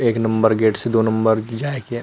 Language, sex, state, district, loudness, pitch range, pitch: Chhattisgarhi, male, Chhattisgarh, Rajnandgaon, -18 LUFS, 110-120 Hz, 115 Hz